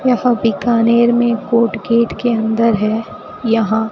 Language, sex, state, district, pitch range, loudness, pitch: Hindi, female, Rajasthan, Bikaner, 220-240 Hz, -15 LUFS, 230 Hz